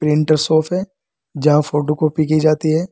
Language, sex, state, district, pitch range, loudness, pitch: Hindi, male, Uttar Pradesh, Saharanpur, 150-160 Hz, -16 LUFS, 155 Hz